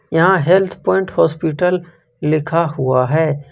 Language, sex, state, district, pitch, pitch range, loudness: Hindi, male, Jharkhand, Ranchi, 160 Hz, 150-180 Hz, -16 LUFS